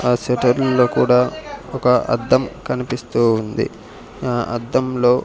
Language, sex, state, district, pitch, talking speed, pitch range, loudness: Telugu, male, Andhra Pradesh, Sri Satya Sai, 125 Hz, 115 wpm, 120-125 Hz, -18 LUFS